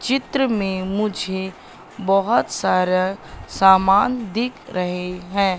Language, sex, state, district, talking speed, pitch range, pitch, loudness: Hindi, female, Madhya Pradesh, Katni, 95 wpm, 185-220 Hz, 195 Hz, -20 LUFS